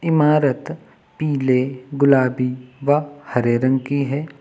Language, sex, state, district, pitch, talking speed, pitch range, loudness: Hindi, male, Uttar Pradesh, Lucknow, 140 Hz, 110 wpm, 130-150 Hz, -19 LUFS